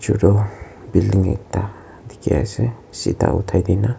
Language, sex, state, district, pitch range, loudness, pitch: Nagamese, male, Nagaland, Kohima, 95-110 Hz, -20 LUFS, 100 Hz